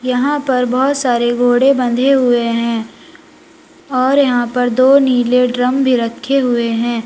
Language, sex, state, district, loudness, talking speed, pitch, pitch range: Hindi, female, Uttar Pradesh, Lalitpur, -14 LUFS, 155 wpm, 250 Hz, 240-270 Hz